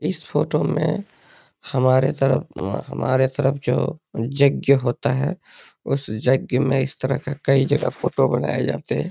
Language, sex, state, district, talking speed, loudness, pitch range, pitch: Hindi, male, Bihar, Lakhisarai, 150 wpm, -21 LUFS, 130-140 Hz, 135 Hz